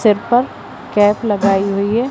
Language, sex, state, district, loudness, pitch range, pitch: Hindi, female, Madhya Pradesh, Umaria, -15 LUFS, 200-230 Hz, 210 Hz